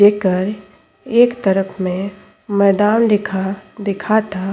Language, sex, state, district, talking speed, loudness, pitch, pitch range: Bhojpuri, female, Uttar Pradesh, Ghazipur, 105 wpm, -17 LUFS, 200 Hz, 190-210 Hz